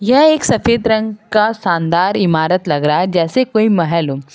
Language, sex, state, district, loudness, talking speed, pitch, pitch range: Hindi, female, Uttar Pradesh, Lucknow, -14 LUFS, 195 wpm, 185 Hz, 165-220 Hz